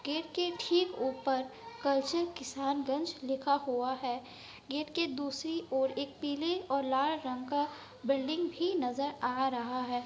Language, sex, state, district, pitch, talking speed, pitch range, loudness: Hindi, female, Bihar, Kishanganj, 280 Hz, 150 wpm, 265-320 Hz, -34 LUFS